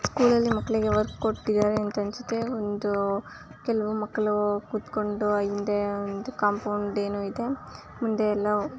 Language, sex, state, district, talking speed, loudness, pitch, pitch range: Kannada, female, Karnataka, Chamarajanagar, 110 wpm, -27 LUFS, 210 Hz, 205-220 Hz